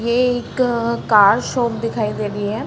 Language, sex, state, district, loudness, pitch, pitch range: Hindi, female, Uttar Pradesh, Varanasi, -18 LUFS, 230 Hz, 210-240 Hz